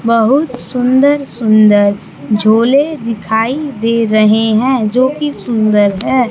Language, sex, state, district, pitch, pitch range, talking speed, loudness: Hindi, male, Bihar, Kaimur, 230 Hz, 215-260 Hz, 115 wpm, -12 LUFS